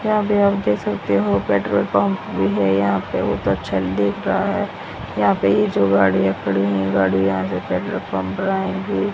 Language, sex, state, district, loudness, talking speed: Hindi, female, Haryana, Rohtak, -19 LUFS, 210 wpm